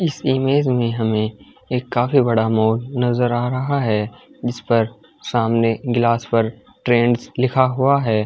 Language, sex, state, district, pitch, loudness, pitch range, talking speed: Hindi, male, Chhattisgarh, Bilaspur, 120 Hz, -19 LUFS, 115-130 Hz, 150 wpm